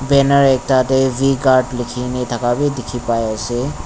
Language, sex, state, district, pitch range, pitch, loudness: Nagamese, male, Nagaland, Dimapur, 120-135 Hz, 130 Hz, -16 LUFS